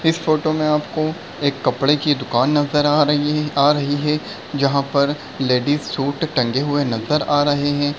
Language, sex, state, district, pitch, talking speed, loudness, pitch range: Hindi, male, Bihar, Darbhanga, 145 Hz, 185 wpm, -19 LUFS, 140-150 Hz